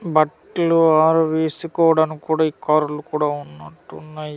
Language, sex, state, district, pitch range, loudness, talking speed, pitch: Telugu, male, Andhra Pradesh, Manyam, 150-160 Hz, -18 LUFS, 95 wpm, 155 Hz